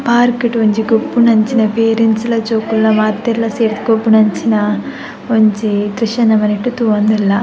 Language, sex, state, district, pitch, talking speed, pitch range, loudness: Tulu, female, Karnataka, Dakshina Kannada, 220 Hz, 130 wpm, 215-230 Hz, -13 LUFS